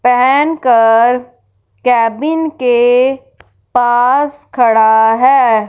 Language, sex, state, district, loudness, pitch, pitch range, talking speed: Hindi, female, Punjab, Fazilka, -11 LUFS, 245 Hz, 230-265 Hz, 75 wpm